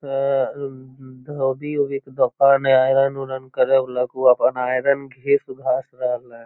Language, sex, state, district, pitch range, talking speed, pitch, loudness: Magahi, male, Bihar, Lakhisarai, 130-140 Hz, 150 wpm, 135 Hz, -20 LUFS